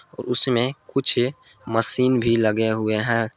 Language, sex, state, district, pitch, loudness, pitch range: Hindi, male, Jharkhand, Palamu, 115 Hz, -18 LUFS, 110-125 Hz